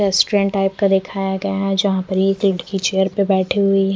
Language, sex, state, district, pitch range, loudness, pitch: Hindi, female, Chandigarh, Chandigarh, 190-195 Hz, -18 LUFS, 195 Hz